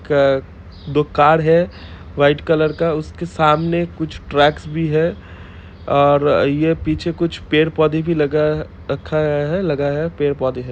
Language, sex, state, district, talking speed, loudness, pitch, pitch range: Hindi, male, Bihar, Gopalganj, 150 wpm, -17 LUFS, 150 Hz, 140-160 Hz